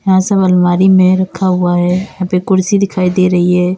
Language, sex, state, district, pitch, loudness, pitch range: Hindi, female, Uttar Pradesh, Lalitpur, 185 Hz, -12 LUFS, 180-190 Hz